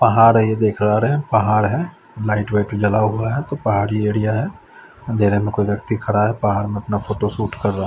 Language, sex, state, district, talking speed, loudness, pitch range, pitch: Hindi, male, Chandigarh, Chandigarh, 245 wpm, -18 LUFS, 105-110 Hz, 105 Hz